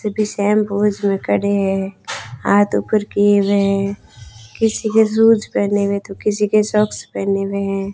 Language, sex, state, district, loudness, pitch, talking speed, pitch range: Hindi, female, Rajasthan, Bikaner, -17 LUFS, 200 Hz, 180 wpm, 195-210 Hz